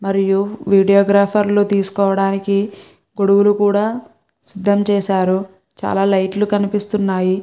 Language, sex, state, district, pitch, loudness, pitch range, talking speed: Telugu, female, Andhra Pradesh, Guntur, 200 Hz, -16 LUFS, 195-205 Hz, 105 wpm